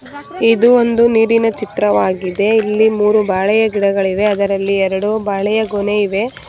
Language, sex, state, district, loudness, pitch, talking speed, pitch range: Kannada, female, Karnataka, Bangalore, -14 LUFS, 210 Hz, 130 wpm, 200-225 Hz